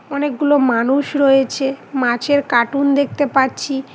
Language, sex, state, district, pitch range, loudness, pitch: Bengali, female, West Bengal, Cooch Behar, 265-285 Hz, -16 LUFS, 275 Hz